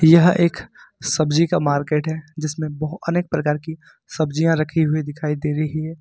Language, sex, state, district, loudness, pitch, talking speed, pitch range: Hindi, male, Jharkhand, Ranchi, -20 LUFS, 155 Hz, 180 wpm, 150-165 Hz